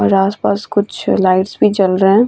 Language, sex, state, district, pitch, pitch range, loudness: Hindi, female, Bihar, Vaishali, 195 Hz, 190-205 Hz, -14 LUFS